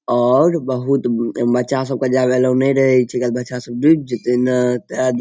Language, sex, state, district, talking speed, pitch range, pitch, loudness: Maithili, male, Bihar, Saharsa, 220 wpm, 125-130 Hz, 125 Hz, -17 LUFS